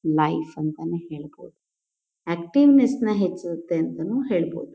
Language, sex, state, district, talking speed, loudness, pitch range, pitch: Kannada, female, Karnataka, Mysore, 100 wpm, -23 LUFS, 160-210 Hz, 170 Hz